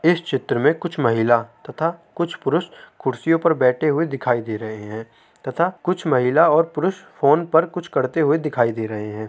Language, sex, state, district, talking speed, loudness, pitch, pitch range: Hindi, male, Uttar Pradesh, Deoria, 195 wpm, -20 LUFS, 145 Hz, 120-165 Hz